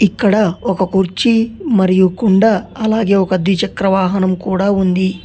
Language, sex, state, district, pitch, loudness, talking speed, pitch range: Telugu, male, Telangana, Hyderabad, 195 Hz, -14 LUFS, 125 wpm, 185-215 Hz